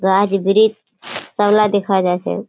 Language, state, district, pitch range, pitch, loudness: Surjapuri, Bihar, Kishanganj, 195-210 Hz, 205 Hz, -16 LUFS